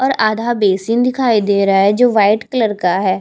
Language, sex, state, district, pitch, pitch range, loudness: Hindi, female, Chhattisgarh, Bastar, 215 Hz, 200-240 Hz, -14 LUFS